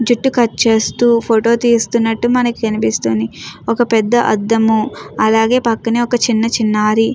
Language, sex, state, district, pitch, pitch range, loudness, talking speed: Telugu, female, Andhra Pradesh, Chittoor, 230 Hz, 220-240 Hz, -14 LUFS, 125 wpm